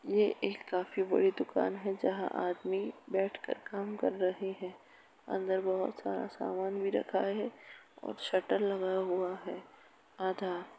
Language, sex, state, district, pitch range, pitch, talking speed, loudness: Hindi, female, Uttar Pradesh, Jalaun, 185-200 Hz, 190 Hz, 145 wpm, -35 LUFS